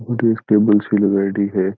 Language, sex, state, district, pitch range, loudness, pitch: Rajasthani, male, Rajasthan, Churu, 100-110 Hz, -16 LUFS, 105 Hz